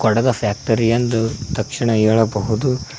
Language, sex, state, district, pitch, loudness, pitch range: Kannada, male, Karnataka, Koppal, 115 Hz, -18 LUFS, 110-120 Hz